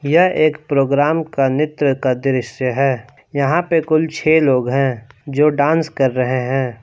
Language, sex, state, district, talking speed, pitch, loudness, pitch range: Hindi, male, Jharkhand, Palamu, 165 wpm, 140 Hz, -17 LUFS, 130-155 Hz